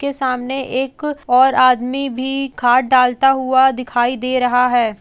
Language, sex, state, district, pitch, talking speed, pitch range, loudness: Hindi, female, Uttar Pradesh, Jalaun, 255 Hz, 155 wpm, 250-270 Hz, -16 LUFS